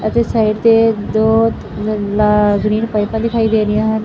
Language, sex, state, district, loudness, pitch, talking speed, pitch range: Punjabi, female, Punjab, Fazilka, -14 LUFS, 220 Hz, 135 wpm, 210-225 Hz